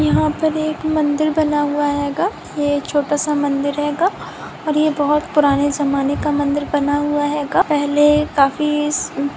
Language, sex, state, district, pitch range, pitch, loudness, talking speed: Hindi, female, Maharashtra, Pune, 290-300 Hz, 295 Hz, -18 LUFS, 160 wpm